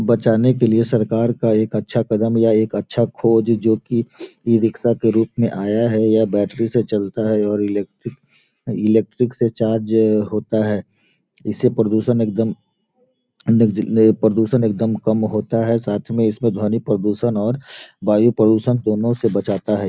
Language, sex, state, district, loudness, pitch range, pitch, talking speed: Hindi, male, Bihar, Gopalganj, -18 LUFS, 105-115 Hz, 110 Hz, 170 wpm